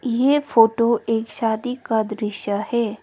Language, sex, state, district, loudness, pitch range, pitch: Hindi, female, Sikkim, Gangtok, -20 LUFS, 220-240 Hz, 225 Hz